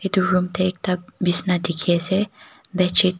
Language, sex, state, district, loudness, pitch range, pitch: Nagamese, female, Nagaland, Kohima, -20 LUFS, 180-190 Hz, 185 Hz